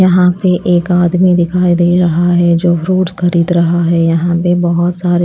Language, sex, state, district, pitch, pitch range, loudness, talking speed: Hindi, female, Odisha, Malkangiri, 175 Hz, 170-180 Hz, -11 LUFS, 195 wpm